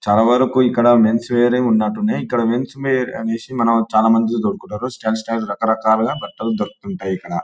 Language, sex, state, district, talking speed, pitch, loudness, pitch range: Telugu, male, Telangana, Nalgonda, 160 wpm, 115 Hz, -18 LUFS, 110-125 Hz